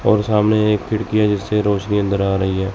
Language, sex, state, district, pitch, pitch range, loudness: Hindi, male, Chandigarh, Chandigarh, 105 Hz, 100-105 Hz, -17 LUFS